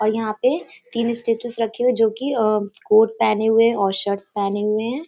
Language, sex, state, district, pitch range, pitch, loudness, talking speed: Hindi, female, Uttar Pradesh, Hamirpur, 210-235 Hz, 225 Hz, -20 LUFS, 215 wpm